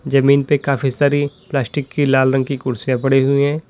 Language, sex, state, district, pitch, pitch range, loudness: Hindi, male, Uttar Pradesh, Lalitpur, 140 Hz, 135-145 Hz, -17 LUFS